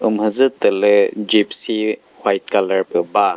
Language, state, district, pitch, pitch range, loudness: Chakhesang, Nagaland, Dimapur, 105 Hz, 100-110 Hz, -17 LUFS